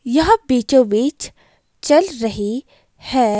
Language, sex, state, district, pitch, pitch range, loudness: Hindi, female, Himachal Pradesh, Shimla, 260 Hz, 230-295 Hz, -16 LUFS